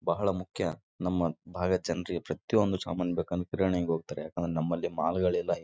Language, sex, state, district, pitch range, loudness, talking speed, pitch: Kannada, male, Karnataka, Raichur, 85-90 Hz, -31 LUFS, 105 wpm, 90 Hz